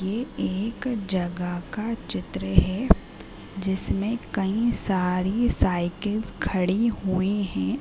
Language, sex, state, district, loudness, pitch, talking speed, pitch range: Hindi, female, Uttar Pradesh, Gorakhpur, -25 LUFS, 195 Hz, 110 wpm, 185-225 Hz